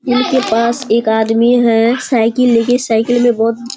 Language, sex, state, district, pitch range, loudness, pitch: Hindi, female, Bihar, Kishanganj, 225-245 Hz, -12 LUFS, 235 Hz